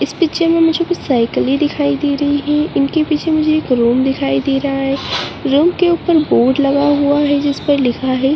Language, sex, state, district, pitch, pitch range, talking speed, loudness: Hindi, female, Uttarakhand, Uttarkashi, 285 Hz, 275-310 Hz, 215 wpm, -14 LUFS